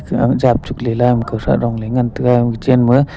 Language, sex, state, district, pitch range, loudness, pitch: Wancho, male, Arunachal Pradesh, Longding, 120-125 Hz, -15 LUFS, 120 Hz